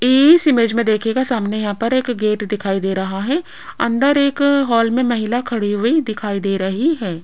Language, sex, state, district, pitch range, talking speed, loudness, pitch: Hindi, female, Rajasthan, Jaipur, 205-260 Hz, 200 wpm, -17 LUFS, 230 Hz